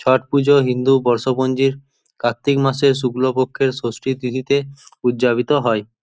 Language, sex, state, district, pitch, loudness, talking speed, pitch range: Bengali, male, West Bengal, Jhargram, 130 Hz, -18 LUFS, 110 wpm, 125-135 Hz